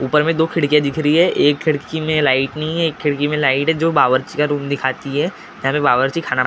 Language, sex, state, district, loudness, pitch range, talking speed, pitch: Hindi, male, Maharashtra, Gondia, -17 LUFS, 140-155 Hz, 270 wpm, 150 Hz